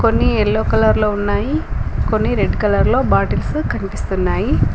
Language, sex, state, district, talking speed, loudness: Telugu, female, Telangana, Komaram Bheem, 125 wpm, -17 LUFS